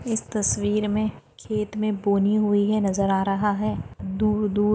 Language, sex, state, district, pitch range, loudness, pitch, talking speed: Hindi, female, Maharashtra, Dhule, 205-215 Hz, -24 LUFS, 210 Hz, 175 wpm